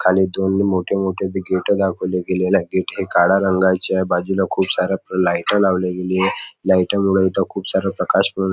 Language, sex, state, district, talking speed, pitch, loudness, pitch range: Marathi, male, Maharashtra, Nagpur, 205 wpm, 95 Hz, -18 LUFS, 90-95 Hz